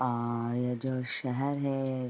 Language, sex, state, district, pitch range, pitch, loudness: Hindi, female, Uttar Pradesh, Varanasi, 125-135 Hz, 130 Hz, -31 LUFS